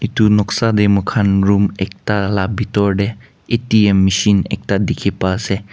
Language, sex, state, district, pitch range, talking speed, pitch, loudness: Nagamese, male, Nagaland, Kohima, 100-105 Hz, 170 wpm, 100 Hz, -16 LUFS